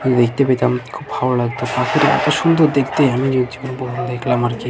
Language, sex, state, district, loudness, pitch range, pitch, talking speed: Bengali, male, West Bengal, Jhargram, -17 LUFS, 125-140 Hz, 130 Hz, 155 wpm